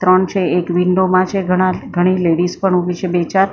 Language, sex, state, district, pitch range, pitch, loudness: Gujarati, female, Maharashtra, Mumbai Suburban, 180-185 Hz, 185 Hz, -15 LUFS